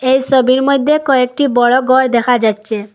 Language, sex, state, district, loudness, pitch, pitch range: Bengali, female, Assam, Hailakandi, -12 LUFS, 255 Hz, 245-270 Hz